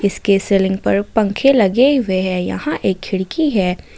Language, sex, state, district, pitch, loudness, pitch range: Hindi, female, Jharkhand, Ranchi, 200 Hz, -16 LUFS, 190-225 Hz